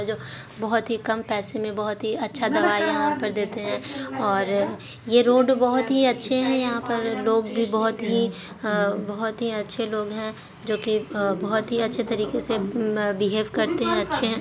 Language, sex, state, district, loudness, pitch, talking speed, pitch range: Hindi, female, Bihar, Jahanabad, -24 LUFS, 225 Hz, 185 wpm, 210-235 Hz